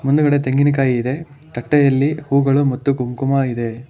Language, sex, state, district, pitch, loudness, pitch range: Kannada, male, Karnataka, Bangalore, 135 Hz, -17 LUFS, 130-145 Hz